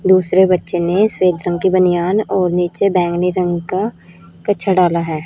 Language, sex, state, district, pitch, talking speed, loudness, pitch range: Hindi, female, Haryana, Rohtak, 180 Hz, 170 wpm, -15 LUFS, 175-190 Hz